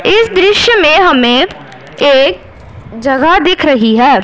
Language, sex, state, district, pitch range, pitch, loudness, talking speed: Hindi, male, Punjab, Pathankot, 225-370 Hz, 275 Hz, -8 LUFS, 125 wpm